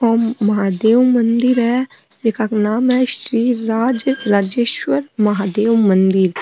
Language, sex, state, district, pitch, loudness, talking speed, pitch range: Marwari, female, Rajasthan, Nagaur, 230 Hz, -16 LUFS, 105 wpm, 210-245 Hz